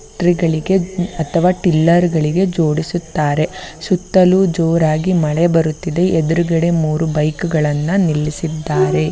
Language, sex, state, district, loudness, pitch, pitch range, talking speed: Kannada, female, Karnataka, Bellary, -15 LUFS, 165 Hz, 155-175 Hz, 85 wpm